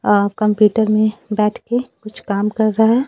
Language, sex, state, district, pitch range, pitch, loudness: Hindi, female, Bihar, Kaimur, 210-220 Hz, 215 Hz, -17 LUFS